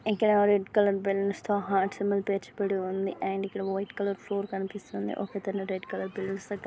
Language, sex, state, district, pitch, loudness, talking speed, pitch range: Telugu, female, Andhra Pradesh, Srikakulam, 200 Hz, -29 LUFS, 215 wpm, 195-200 Hz